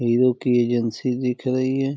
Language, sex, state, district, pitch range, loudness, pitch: Hindi, male, Uttar Pradesh, Deoria, 120-130 Hz, -21 LUFS, 125 Hz